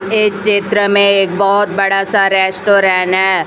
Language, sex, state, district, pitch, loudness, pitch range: Hindi, female, Chhattisgarh, Raipur, 200 Hz, -12 LUFS, 190-205 Hz